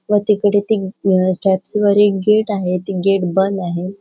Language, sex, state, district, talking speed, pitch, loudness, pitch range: Marathi, female, Goa, North and South Goa, 165 wpm, 195 Hz, -16 LUFS, 190-205 Hz